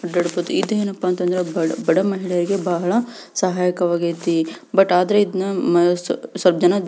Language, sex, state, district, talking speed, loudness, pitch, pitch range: Kannada, female, Karnataka, Belgaum, 120 wpm, -19 LUFS, 180 Hz, 175-195 Hz